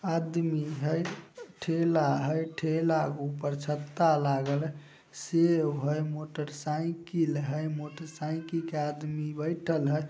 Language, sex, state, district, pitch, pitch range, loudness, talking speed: Maithili, male, Bihar, Samastipur, 155 Hz, 150-165 Hz, -30 LUFS, 105 wpm